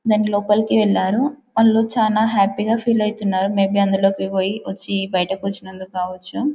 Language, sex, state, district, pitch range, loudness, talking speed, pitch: Telugu, female, Telangana, Karimnagar, 190-220 Hz, -19 LUFS, 165 wpm, 200 Hz